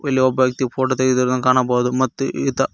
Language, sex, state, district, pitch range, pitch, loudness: Kannada, male, Karnataka, Koppal, 125-130 Hz, 130 Hz, -18 LUFS